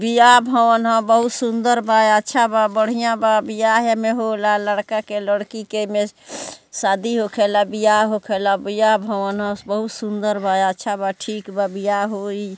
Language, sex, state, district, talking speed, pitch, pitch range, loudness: Bhojpuri, female, Bihar, East Champaran, 165 wpm, 215 Hz, 205-225 Hz, -18 LUFS